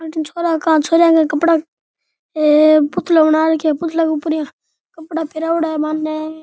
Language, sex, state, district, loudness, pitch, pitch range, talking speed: Rajasthani, male, Rajasthan, Nagaur, -15 LUFS, 315 Hz, 310-325 Hz, 150 wpm